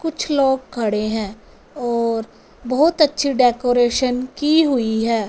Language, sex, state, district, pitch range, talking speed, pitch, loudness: Hindi, female, Punjab, Fazilka, 230-280 Hz, 125 wpm, 250 Hz, -18 LUFS